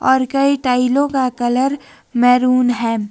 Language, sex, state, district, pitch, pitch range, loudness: Hindi, female, Himachal Pradesh, Shimla, 255 Hz, 245-270 Hz, -16 LUFS